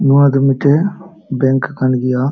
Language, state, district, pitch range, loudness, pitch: Santali, Jharkhand, Sahebganj, 130-145 Hz, -14 LUFS, 135 Hz